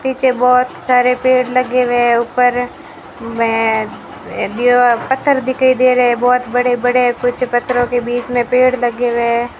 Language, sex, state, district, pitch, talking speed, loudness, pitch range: Hindi, female, Rajasthan, Bikaner, 245 Hz, 160 wpm, -14 LUFS, 240-255 Hz